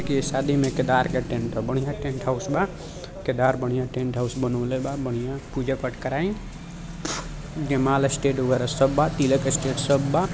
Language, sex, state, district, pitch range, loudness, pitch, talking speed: Bhojpuri, male, Bihar, Gopalganj, 130-145 Hz, -24 LUFS, 135 Hz, 175 wpm